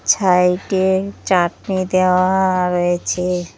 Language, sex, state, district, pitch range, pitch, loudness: Bengali, female, West Bengal, Cooch Behar, 180-190 Hz, 185 Hz, -17 LUFS